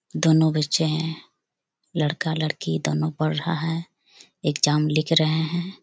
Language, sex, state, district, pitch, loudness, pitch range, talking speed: Hindi, female, Chhattisgarh, Bastar, 160 Hz, -23 LUFS, 150-165 Hz, 145 wpm